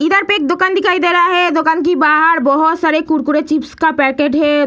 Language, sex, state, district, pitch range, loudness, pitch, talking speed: Hindi, female, Bihar, Lakhisarai, 300-350 Hz, -13 LUFS, 320 Hz, 230 wpm